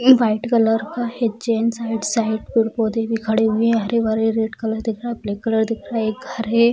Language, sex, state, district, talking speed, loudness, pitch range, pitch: Hindi, female, Bihar, Bhagalpur, 260 wpm, -20 LUFS, 220-230 Hz, 225 Hz